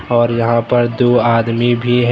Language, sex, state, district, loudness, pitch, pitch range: Hindi, male, Jharkhand, Deoghar, -14 LUFS, 120 Hz, 115-120 Hz